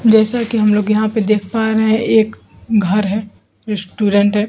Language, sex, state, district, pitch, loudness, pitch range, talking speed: Hindi, female, Bihar, Kaimur, 215 Hz, -15 LUFS, 210-220 Hz, 200 wpm